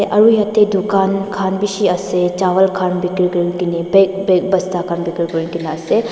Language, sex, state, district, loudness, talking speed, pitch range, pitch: Nagamese, female, Nagaland, Dimapur, -16 LUFS, 165 wpm, 175-195 Hz, 185 Hz